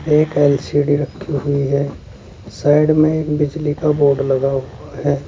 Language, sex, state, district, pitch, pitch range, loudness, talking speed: Hindi, male, Uttar Pradesh, Saharanpur, 145 Hz, 140-150 Hz, -17 LUFS, 150 wpm